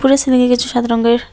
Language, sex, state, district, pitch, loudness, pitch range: Bengali, male, West Bengal, Alipurduar, 245 Hz, -14 LUFS, 235-260 Hz